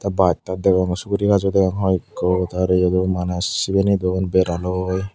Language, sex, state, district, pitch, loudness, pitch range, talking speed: Chakma, female, Tripura, Unakoti, 95 Hz, -19 LUFS, 90-100 Hz, 175 wpm